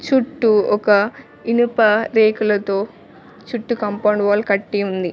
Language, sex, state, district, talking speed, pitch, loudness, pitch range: Telugu, female, Telangana, Mahabubabad, 105 wpm, 215 Hz, -17 LUFS, 205-230 Hz